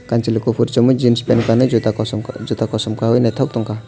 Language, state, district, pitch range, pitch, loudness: Kokborok, Tripura, West Tripura, 110-120 Hz, 115 Hz, -17 LUFS